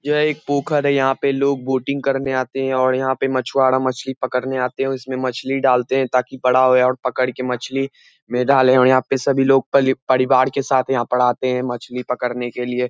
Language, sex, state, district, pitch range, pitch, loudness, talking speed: Hindi, male, Bihar, Muzaffarpur, 125-135 Hz, 130 Hz, -18 LUFS, 230 wpm